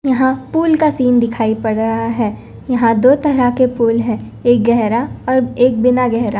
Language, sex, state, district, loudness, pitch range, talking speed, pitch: Hindi, female, Punjab, Fazilka, -14 LUFS, 230-260 Hz, 185 wpm, 240 Hz